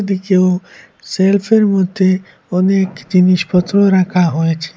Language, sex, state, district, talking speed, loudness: Bengali, female, Assam, Hailakandi, 90 wpm, -14 LUFS